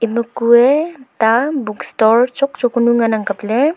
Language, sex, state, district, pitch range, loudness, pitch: Wancho, female, Arunachal Pradesh, Longding, 225-265 Hz, -15 LUFS, 235 Hz